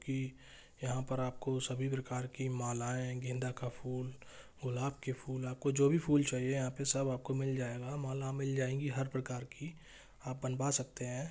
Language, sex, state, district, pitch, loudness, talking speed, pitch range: Hindi, male, Jharkhand, Jamtara, 130 Hz, -37 LUFS, 190 wpm, 125-135 Hz